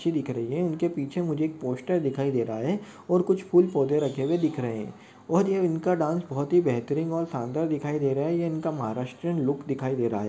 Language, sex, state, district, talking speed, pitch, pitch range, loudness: Hindi, male, Maharashtra, Pune, 250 wpm, 150 Hz, 135-170 Hz, -27 LUFS